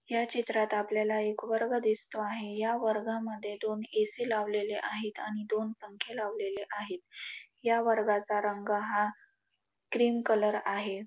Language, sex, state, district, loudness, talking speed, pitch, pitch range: Marathi, female, Maharashtra, Dhule, -32 LUFS, 135 wpm, 215 Hz, 210-225 Hz